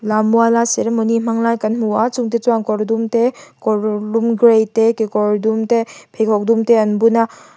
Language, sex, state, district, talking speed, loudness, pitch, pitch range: Mizo, female, Mizoram, Aizawl, 200 wpm, -16 LUFS, 225 Hz, 215-230 Hz